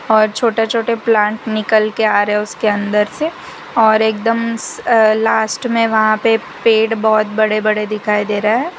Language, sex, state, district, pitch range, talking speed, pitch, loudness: Hindi, female, Gujarat, Valsad, 215-230 Hz, 185 wpm, 220 Hz, -15 LUFS